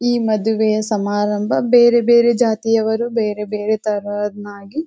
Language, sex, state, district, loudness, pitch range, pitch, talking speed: Kannada, female, Karnataka, Bijapur, -17 LUFS, 210-235 Hz, 220 Hz, 135 wpm